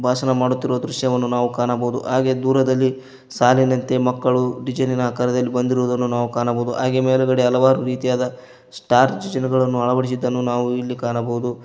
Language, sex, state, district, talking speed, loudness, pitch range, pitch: Kannada, male, Karnataka, Koppal, 125 wpm, -19 LUFS, 125-130 Hz, 125 Hz